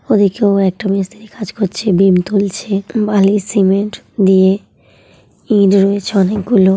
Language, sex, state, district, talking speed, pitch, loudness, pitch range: Bengali, female, West Bengal, Jhargram, 125 wpm, 200 Hz, -13 LUFS, 195-210 Hz